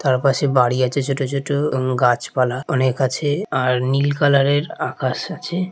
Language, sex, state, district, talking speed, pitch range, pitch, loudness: Bengali, male, West Bengal, Jalpaiguri, 170 wpm, 130-145 Hz, 135 Hz, -19 LUFS